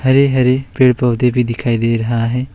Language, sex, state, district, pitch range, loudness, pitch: Hindi, male, West Bengal, Alipurduar, 115-130 Hz, -14 LUFS, 125 Hz